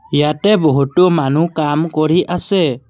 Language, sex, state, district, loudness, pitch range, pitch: Assamese, male, Assam, Kamrup Metropolitan, -14 LUFS, 150-175 Hz, 155 Hz